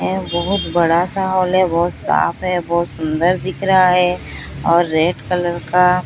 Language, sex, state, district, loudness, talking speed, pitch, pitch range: Hindi, female, Odisha, Sambalpur, -17 LUFS, 180 wpm, 180 Hz, 170-185 Hz